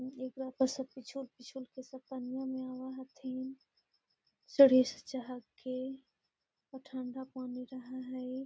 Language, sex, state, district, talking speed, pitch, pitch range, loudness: Magahi, female, Bihar, Gaya, 130 wpm, 260 Hz, 255-265 Hz, -35 LUFS